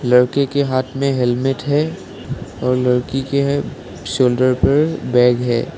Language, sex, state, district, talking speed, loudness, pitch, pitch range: Hindi, male, Assam, Sonitpur, 135 wpm, -17 LUFS, 130 Hz, 125-140 Hz